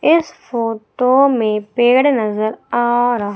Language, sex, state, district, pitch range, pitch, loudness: Hindi, female, Madhya Pradesh, Umaria, 215-260 Hz, 240 Hz, -16 LUFS